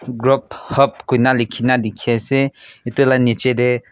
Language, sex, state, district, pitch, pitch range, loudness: Nagamese, male, Nagaland, Kohima, 125 Hz, 120-135 Hz, -17 LUFS